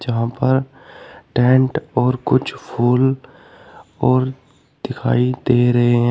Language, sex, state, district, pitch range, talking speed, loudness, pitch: Hindi, male, Uttar Pradesh, Shamli, 120-130 Hz, 110 wpm, -17 LUFS, 130 Hz